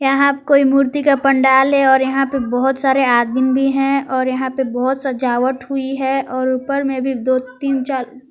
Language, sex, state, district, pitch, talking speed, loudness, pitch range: Hindi, female, Jharkhand, Palamu, 265 Hz, 215 wpm, -16 LUFS, 260-275 Hz